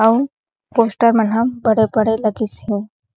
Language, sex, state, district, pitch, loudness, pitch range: Chhattisgarhi, female, Chhattisgarh, Sarguja, 220 Hz, -17 LUFS, 215-230 Hz